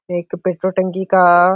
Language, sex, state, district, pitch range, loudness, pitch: Hindi, male, Uttar Pradesh, Etah, 175-190 Hz, -16 LUFS, 185 Hz